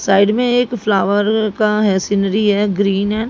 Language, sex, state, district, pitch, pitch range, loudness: Hindi, female, Haryana, Jhajjar, 205 Hz, 200-215 Hz, -15 LUFS